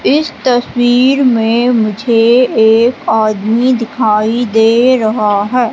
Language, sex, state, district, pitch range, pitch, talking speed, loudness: Hindi, female, Madhya Pradesh, Katni, 220-245 Hz, 235 Hz, 105 wpm, -11 LUFS